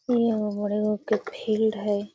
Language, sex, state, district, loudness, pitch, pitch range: Magahi, female, Bihar, Gaya, -26 LUFS, 210 Hz, 210-220 Hz